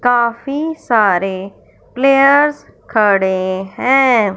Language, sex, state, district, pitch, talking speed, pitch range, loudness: Hindi, male, Punjab, Fazilka, 235 Hz, 70 wpm, 195-275 Hz, -14 LUFS